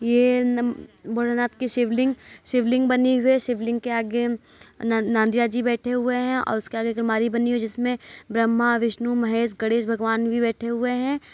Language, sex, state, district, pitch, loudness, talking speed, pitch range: Hindi, female, Uttar Pradesh, Etah, 240 Hz, -23 LUFS, 190 wpm, 230-245 Hz